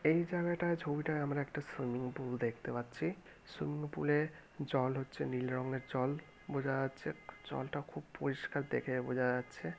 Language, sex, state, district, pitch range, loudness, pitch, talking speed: Bengali, male, West Bengal, Malda, 125-155 Hz, -38 LUFS, 135 Hz, 145 wpm